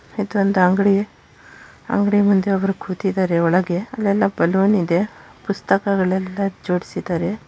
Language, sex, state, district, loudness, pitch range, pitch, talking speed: Kannada, female, Karnataka, Shimoga, -19 LUFS, 185-200 Hz, 195 Hz, 105 wpm